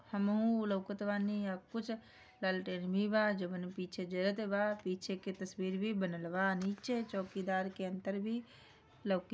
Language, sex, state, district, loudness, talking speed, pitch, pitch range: Bhojpuri, female, Bihar, Gopalganj, -38 LUFS, 85 wpm, 195 Hz, 185-210 Hz